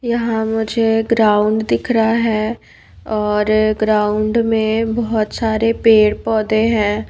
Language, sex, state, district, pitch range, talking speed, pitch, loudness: Hindi, female, Bihar, Patna, 215-225 Hz, 120 wpm, 220 Hz, -16 LUFS